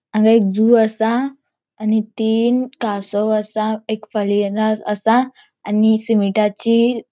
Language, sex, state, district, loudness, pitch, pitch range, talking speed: Konkani, female, Goa, North and South Goa, -17 LUFS, 220 Hz, 210-230 Hz, 110 wpm